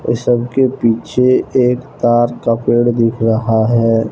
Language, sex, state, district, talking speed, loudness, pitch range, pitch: Hindi, male, Jharkhand, Deoghar, 130 wpm, -14 LUFS, 115-125 Hz, 120 Hz